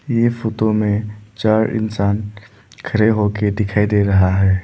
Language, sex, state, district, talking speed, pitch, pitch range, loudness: Hindi, male, Arunachal Pradesh, Lower Dibang Valley, 140 wpm, 105 Hz, 105-110 Hz, -17 LUFS